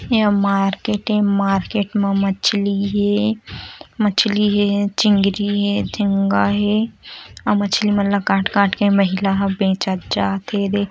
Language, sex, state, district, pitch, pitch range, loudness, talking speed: Hindi, female, Chhattisgarh, Korba, 200 Hz, 195-205 Hz, -18 LUFS, 155 wpm